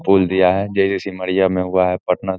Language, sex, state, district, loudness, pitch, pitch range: Hindi, male, Bihar, Begusarai, -17 LUFS, 95 Hz, 90-95 Hz